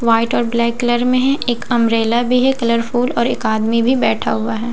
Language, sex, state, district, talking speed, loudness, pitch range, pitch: Hindi, female, Bihar, Katihar, 230 wpm, -16 LUFS, 230-245 Hz, 235 Hz